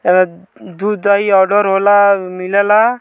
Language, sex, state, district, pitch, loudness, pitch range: Bhojpuri, male, Bihar, Muzaffarpur, 200 Hz, -13 LUFS, 185-205 Hz